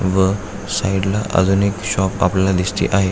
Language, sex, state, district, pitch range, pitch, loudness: Marathi, male, Maharashtra, Aurangabad, 95-100 Hz, 95 Hz, -18 LUFS